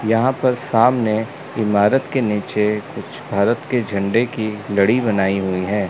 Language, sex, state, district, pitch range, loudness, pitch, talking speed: Hindi, male, Chandigarh, Chandigarh, 100-125 Hz, -18 LUFS, 110 Hz, 155 wpm